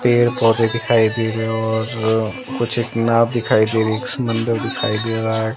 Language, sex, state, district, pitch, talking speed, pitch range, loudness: Hindi, female, Himachal Pradesh, Shimla, 115 Hz, 205 wpm, 110-120 Hz, -18 LUFS